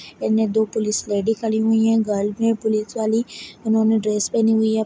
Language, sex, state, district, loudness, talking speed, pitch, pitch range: Hindi, female, Bihar, Begusarai, -20 LUFS, 210 wpm, 220 Hz, 215-225 Hz